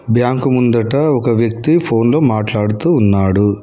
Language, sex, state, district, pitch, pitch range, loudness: Telugu, male, Telangana, Hyderabad, 115 Hz, 105-130 Hz, -14 LUFS